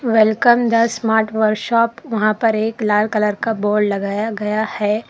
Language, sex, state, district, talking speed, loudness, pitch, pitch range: Hindi, female, Karnataka, Koppal, 165 wpm, -17 LUFS, 220 Hz, 210-230 Hz